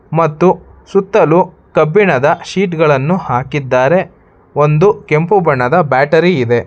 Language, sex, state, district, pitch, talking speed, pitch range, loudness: Kannada, male, Karnataka, Bangalore, 165 Hz, 100 wpm, 135-185 Hz, -12 LUFS